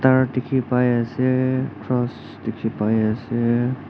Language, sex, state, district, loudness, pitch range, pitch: Nagamese, male, Nagaland, Dimapur, -21 LUFS, 115-130 Hz, 125 Hz